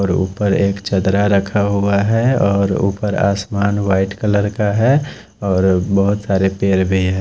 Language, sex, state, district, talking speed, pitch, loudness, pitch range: Hindi, male, Odisha, Khordha, 165 wpm, 100 Hz, -16 LUFS, 95-100 Hz